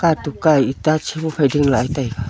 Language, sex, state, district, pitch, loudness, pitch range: Wancho, female, Arunachal Pradesh, Longding, 145 Hz, -18 LUFS, 135-155 Hz